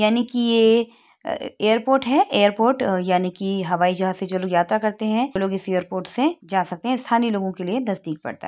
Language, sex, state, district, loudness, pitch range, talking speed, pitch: Hindi, female, Uttar Pradesh, Etah, -21 LUFS, 185-235 Hz, 220 wpm, 200 Hz